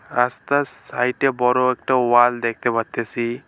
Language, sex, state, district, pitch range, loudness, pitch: Bengali, male, West Bengal, Alipurduar, 120-125 Hz, -19 LUFS, 125 Hz